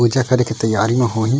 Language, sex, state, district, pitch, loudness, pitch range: Chhattisgarhi, male, Chhattisgarh, Raigarh, 120 Hz, -17 LUFS, 110-125 Hz